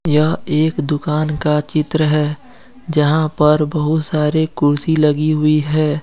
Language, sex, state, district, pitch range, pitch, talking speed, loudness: Hindi, male, Jharkhand, Deoghar, 150-155 Hz, 150 Hz, 140 wpm, -16 LUFS